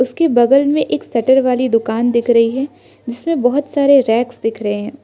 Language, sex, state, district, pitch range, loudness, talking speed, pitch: Hindi, female, Arunachal Pradesh, Lower Dibang Valley, 230-280 Hz, -15 LUFS, 205 wpm, 245 Hz